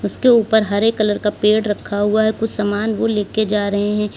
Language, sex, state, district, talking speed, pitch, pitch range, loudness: Hindi, female, Uttar Pradesh, Lalitpur, 230 wpm, 210 Hz, 205-220 Hz, -17 LUFS